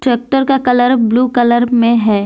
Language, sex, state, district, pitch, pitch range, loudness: Hindi, female, Jharkhand, Deoghar, 245 Hz, 235-255 Hz, -12 LUFS